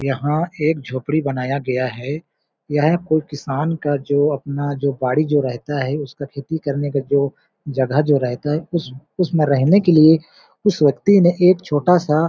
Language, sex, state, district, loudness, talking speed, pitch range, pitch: Hindi, male, Chhattisgarh, Balrampur, -18 LUFS, 185 wpm, 140-160 Hz, 145 Hz